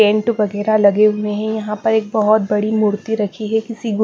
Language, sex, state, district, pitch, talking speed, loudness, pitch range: Hindi, female, Bihar, Katihar, 215 Hz, 205 wpm, -17 LUFS, 210-220 Hz